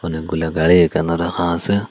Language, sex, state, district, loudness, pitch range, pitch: Bengali, male, Assam, Hailakandi, -17 LUFS, 80-90 Hz, 85 Hz